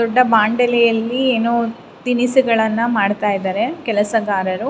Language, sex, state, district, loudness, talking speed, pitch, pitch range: Kannada, female, Karnataka, Raichur, -17 LUFS, 90 wpm, 230 Hz, 215-245 Hz